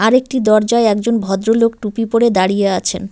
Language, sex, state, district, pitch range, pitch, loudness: Bengali, female, West Bengal, Cooch Behar, 200-230 Hz, 220 Hz, -14 LUFS